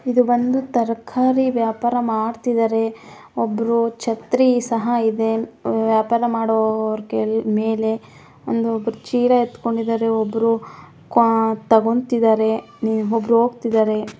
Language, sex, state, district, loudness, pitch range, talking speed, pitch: Kannada, female, Karnataka, Mysore, -19 LUFS, 220-235 Hz, 80 wpm, 225 Hz